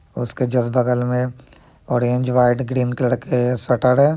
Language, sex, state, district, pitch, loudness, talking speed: Hindi, male, Bihar, Muzaffarpur, 125 Hz, -19 LUFS, 175 wpm